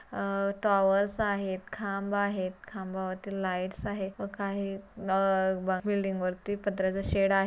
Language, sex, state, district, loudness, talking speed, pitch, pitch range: Marathi, female, Maharashtra, Pune, -31 LUFS, 135 wpm, 195 Hz, 190-200 Hz